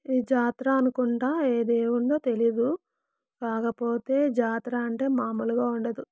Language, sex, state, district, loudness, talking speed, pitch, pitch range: Telugu, female, Telangana, Karimnagar, -26 LUFS, 110 wpm, 245 Hz, 235-265 Hz